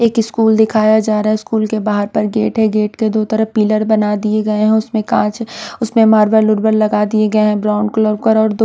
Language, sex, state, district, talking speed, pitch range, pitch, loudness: Hindi, female, Punjab, Pathankot, 240 wpm, 215-220 Hz, 215 Hz, -14 LUFS